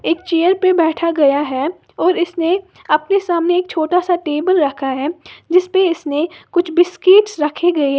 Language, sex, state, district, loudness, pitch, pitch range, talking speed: Hindi, female, Uttar Pradesh, Lalitpur, -16 LUFS, 345 Hz, 305-360 Hz, 180 wpm